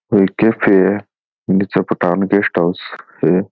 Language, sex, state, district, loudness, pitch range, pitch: Rajasthani, male, Rajasthan, Churu, -15 LUFS, 95-100 Hz, 95 Hz